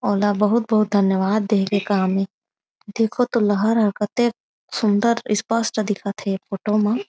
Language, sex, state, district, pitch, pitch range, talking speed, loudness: Chhattisgarhi, female, Chhattisgarh, Raigarh, 210 Hz, 200-225 Hz, 145 wpm, -20 LUFS